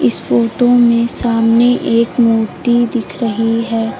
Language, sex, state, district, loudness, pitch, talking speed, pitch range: Hindi, female, Uttar Pradesh, Lucknow, -13 LUFS, 230 Hz, 135 wpm, 225-240 Hz